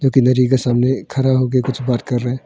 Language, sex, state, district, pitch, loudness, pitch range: Hindi, female, Arunachal Pradesh, Longding, 130 Hz, -16 LUFS, 125-130 Hz